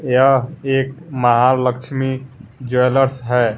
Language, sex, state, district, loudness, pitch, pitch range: Hindi, male, Bihar, West Champaran, -17 LUFS, 130 Hz, 125-135 Hz